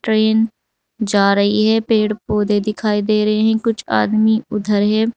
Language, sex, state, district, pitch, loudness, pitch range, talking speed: Hindi, female, Uttar Pradesh, Saharanpur, 215 Hz, -16 LUFS, 210-220 Hz, 165 wpm